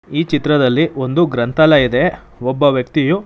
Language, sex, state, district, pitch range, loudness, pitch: Kannada, male, Karnataka, Bangalore, 130-160 Hz, -15 LUFS, 145 Hz